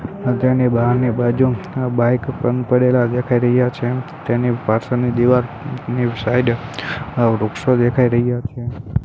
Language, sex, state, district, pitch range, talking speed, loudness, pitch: Gujarati, male, Gujarat, Gandhinagar, 120-125 Hz, 125 wpm, -18 LUFS, 125 Hz